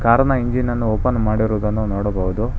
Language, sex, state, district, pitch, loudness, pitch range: Kannada, male, Karnataka, Bangalore, 110 Hz, -19 LUFS, 105-120 Hz